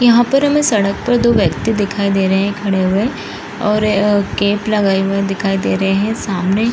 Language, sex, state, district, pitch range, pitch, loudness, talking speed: Hindi, female, Bihar, East Champaran, 195-220 Hz, 205 Hz, -15 LUFS, 185 wpm